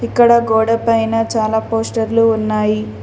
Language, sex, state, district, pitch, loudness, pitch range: Telugu, female, Telangana, Mahabubabad, 225 Hz, -15 LUFS, 220-230 Hz